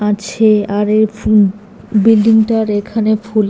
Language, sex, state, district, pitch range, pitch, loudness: Bengali, female, Tripura, West Tripura, 210-220 Hz, 215 Hz, -13 LUFS